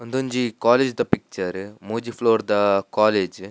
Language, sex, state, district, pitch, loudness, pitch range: Tulu, male, Karnataka, Dakshina Kannada, 115 Hz, -21 LUFS, 100-120 Hz